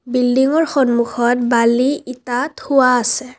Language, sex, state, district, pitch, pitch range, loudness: Assamese, female, Assam, Kamrup Metropolitan, 250 Hz, 240-265 Hz, -16 LUFS